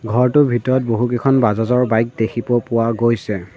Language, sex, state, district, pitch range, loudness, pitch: Assamese, male, Assam, Sonitpur, 115-125 Hz, -17 LUFS, 120 Hz